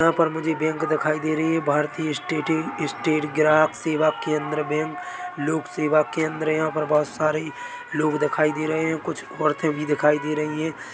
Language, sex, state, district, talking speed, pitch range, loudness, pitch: Hindi, male, Chhattisgarh, Bilaspur, 180 wpm, 155-160 Hz, -23 LUFS, 155 Hz